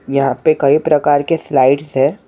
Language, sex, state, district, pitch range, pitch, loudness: Hindi, male, Maharashtra, Mumbai Suburban, 140-155 Hz, 145 Hz, -14 LUFS